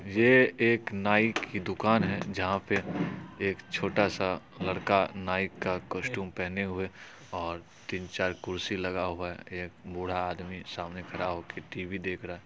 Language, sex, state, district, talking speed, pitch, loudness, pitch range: Hindi, male, Bihar, Supaul, 165 wpm, 90 Hz, -30 LUFS, 90-100 Hz